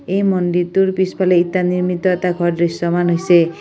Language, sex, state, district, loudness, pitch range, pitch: Assamese, female, Assam, Kamrup Metropolitan, -16 LUFS, 175-185 Hz, 180 Hz